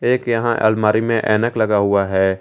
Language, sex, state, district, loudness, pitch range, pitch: Hindi, male, Jharkhand, Garhwa, -17 LUFS, 100-115 Hz, 110 Hz